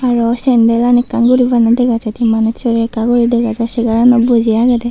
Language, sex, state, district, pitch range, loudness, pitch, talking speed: Chakma, female, Tripura, Unakoti, 230-245 Hz, -12 LUFS, 235 Hz, 220 wpm